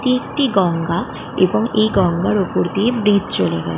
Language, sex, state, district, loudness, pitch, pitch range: Bengali, female, West Bengal, Kolkata, -17 LUFS, 195 Hz, 170-220 Hz